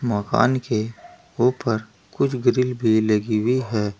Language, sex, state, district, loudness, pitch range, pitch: Hindi, male, Uttar Pradesh, Saharanpur, -21 LUFS, 110-125 Hz, 115 Hz